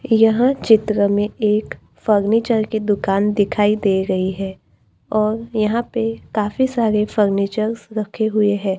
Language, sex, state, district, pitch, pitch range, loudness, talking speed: Hindi, female, Maharashtra, Gondia, 215 Hz, 205-225 Hz, -18 LUFS, 135 wpm